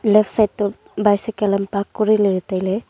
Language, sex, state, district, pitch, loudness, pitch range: Wancho, female, Arunachal Pradesh, Longding, 205 Hz, -19 LUFS, 200-215 Hz